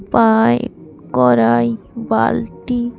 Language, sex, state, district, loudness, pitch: Bengali, female, Tripura, West Tripura, -15 LUFS, 195 Hz